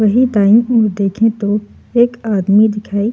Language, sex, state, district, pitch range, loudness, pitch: Hindi, female, Uttar Pradesh, Jalaun, 205-225 Hz, -14 LUFS, 215 Hz